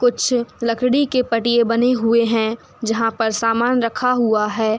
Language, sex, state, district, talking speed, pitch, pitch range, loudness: Hindi, female, Uttar Pradesh, Hamirpur, 165 wpm, 230 Hz, 225-245 Hz, -18 LUFS